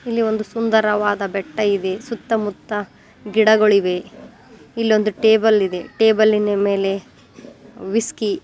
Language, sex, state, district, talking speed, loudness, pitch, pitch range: Kannada, female, Karnataka, Koppal, 100 wpm, -18 LUFS, 210 Hz, 200-220 Hz